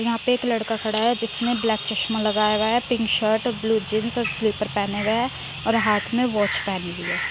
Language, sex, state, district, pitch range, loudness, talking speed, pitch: Hindi, female, Uttar Pradesh, Muzaffarnagar, 215-235 Hz, -23 LUFS, 230 wpm, 220 Hz